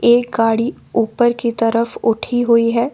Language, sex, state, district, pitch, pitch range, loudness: Hindi, female, Jharkhand, Ranchi, 235 Hz, 230-240 Hz, -16 LUFS